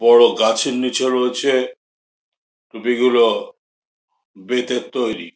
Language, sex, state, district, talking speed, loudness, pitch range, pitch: Bengali, male, West Bengal, Jhargram, 80 wpm, -17 LUFS, 120-130 Hz, 125 Hz